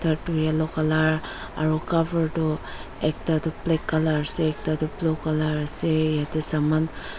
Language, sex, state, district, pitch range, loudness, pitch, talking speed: Nagamese, female, Nagaland, Dimapur, 155-160 Hz, -22 LUFS, 155 Hz, 140 wpm